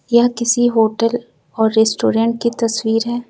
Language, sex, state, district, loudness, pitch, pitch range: Hindi, female, Uttar Pradesh, Lucknow, -16 LUFS, 230 Hz, 225-240 Hz